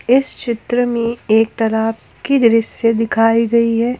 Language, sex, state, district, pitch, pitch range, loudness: Hindi, female, Jharkhand, Ranchi, 230 Hz, 225-240 Hz, -15 LUFS